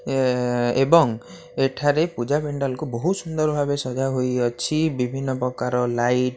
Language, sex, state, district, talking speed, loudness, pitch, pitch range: Odia, male, Odisha, Khordha, 150 wpm, -22 LUFS, 130 Hz, 125-145 Hz